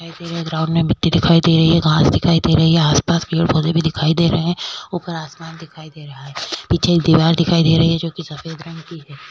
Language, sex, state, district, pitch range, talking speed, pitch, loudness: Hindi, female, Chhattisgarh, Korba, 160-170 Hz, 240 wpm, 165 Hz, -16 LUFS